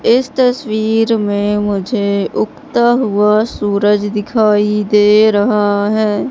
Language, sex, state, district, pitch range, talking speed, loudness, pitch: Hindi, female, Madhya Pradesh, Katni, 205-225 Hz, 105 wpm, -13 LUFS, 210 Hz